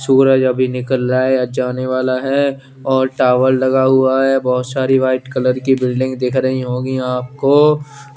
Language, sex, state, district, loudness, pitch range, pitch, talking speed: Hindi, male, Chandigarh, Chandigarh, -15 LUFS, 130-135 Hz, 130 Hz, 175 wpm